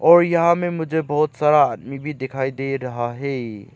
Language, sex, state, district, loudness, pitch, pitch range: Hindi, male, Arunachal Pradesh, Lower Dibang Valley, -20 LUFS, 140 Hz, 130-160 Hz